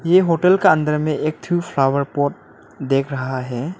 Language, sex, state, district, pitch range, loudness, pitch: Hindi, male, Arunachal Pradesh, Lower Dibang Valley, 135-170 Hz, -19 LUFS, 145 Hz